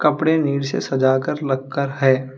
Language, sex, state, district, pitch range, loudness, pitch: Hindi, male, Telangana, Hyderabad, 130-145 Hz, -20 LUFS, 135 Hz